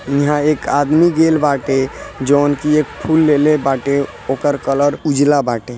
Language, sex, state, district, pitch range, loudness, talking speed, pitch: Hindi, male, Bihar, East Champaran, 135-150 Hz, -15 LUFS, 155 wpm, 145 Hz